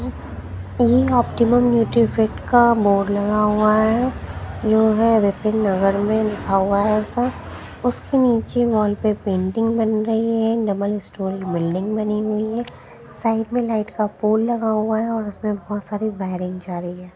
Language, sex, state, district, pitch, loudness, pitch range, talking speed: Hindi, female, Haryana, Jhajjar, 215 Hz, -19 LUFS, 200-225 Hz, 170 wpm